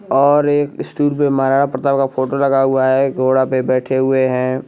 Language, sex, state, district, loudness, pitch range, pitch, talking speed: Hindi, male, Uttar Pradesh, Lucknow, -15 LUFS, 130-140 Hz, 135 Hz, 205 wpm